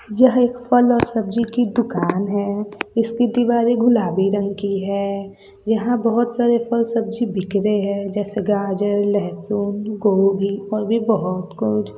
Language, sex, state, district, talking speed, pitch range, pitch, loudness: Hindi, female, Bihar, Gopalganj, 145 wpm, 200-235 Hz, 205 Hz, -19 LUFS